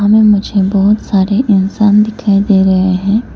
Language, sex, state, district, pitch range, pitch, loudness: Hindi, female, Arunachal Pradesh, Lower Dibang Valley, 195-210 Hz, 200 Hz, -11 LUFS